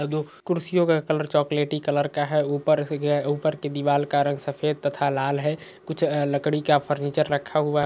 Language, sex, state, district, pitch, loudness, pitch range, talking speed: Hindi, male, Uttar Pradesh, Hamirpur, 150 Hz, -24 LUFS, 145-150 Hz, 185 wpm